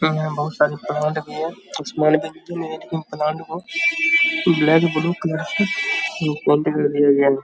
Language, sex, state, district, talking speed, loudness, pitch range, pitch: Hindi, male, Bihar, Darbhanga, 135 wpm, -20 LUFS, 150-165 Hz, 155 Hz